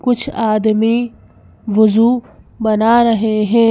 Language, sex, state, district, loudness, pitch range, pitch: Hindi, female, Madhya Pradesh, Bhopal, -14 LUFS, 220-235 Hz, 225 Hz